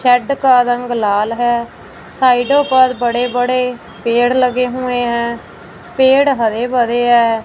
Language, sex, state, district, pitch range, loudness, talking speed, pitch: Hindi, female, Punjab, Fazilka, 235-255 Hz, -14 LUFS, 135 wpm, 245 Hz